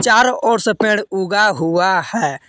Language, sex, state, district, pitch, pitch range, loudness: Hindi, male, Jharkhand, Palamu, 210 Hz, 190-220 Hz, -15 LUFS